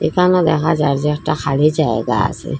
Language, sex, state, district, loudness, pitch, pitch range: Bengali, female, Assam, Hailakandi, -16 LUFS, 150 Hz, 140-160 Hz